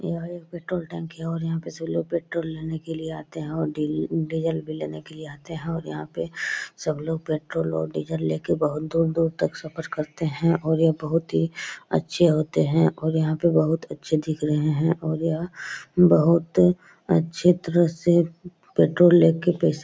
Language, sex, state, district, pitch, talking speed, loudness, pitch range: Hindi, male, Bihar, Araria, 160 Hz, 200 wpm, -24 LUFS, 155-170 Hz